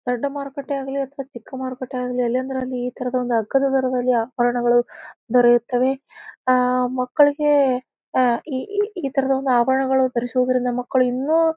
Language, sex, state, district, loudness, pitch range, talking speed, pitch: Kannada, female, Karnataka, Bijapur, -21 LUFS, 250-275 Hz, 130 wpm, 255 Hz